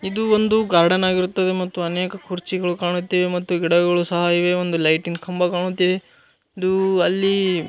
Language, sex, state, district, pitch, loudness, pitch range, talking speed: Kannada, male, Karnataka, Gulbarga, 180 Hz, -20 LUFS, 175-185 Hz, 140 wpm